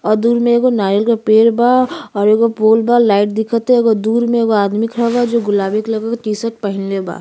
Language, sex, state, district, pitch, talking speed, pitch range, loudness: Bhojpuri, female, Uttar Pradesh, Gorakhpur, 225 Hz, 225 wpm, 210-235 Hz, -14 LUFS